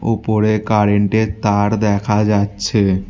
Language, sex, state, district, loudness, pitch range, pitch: Bengali, male, West Bengal, Alipurduar, -16 LUFS, 100-110 Hz, 105 Hz